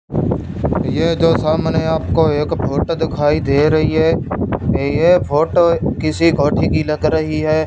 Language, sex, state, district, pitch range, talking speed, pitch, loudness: Hindi, male, Punjab, Fazilka, 150-160 Hz, 140 wpm, 155 Hz, -16 LUFS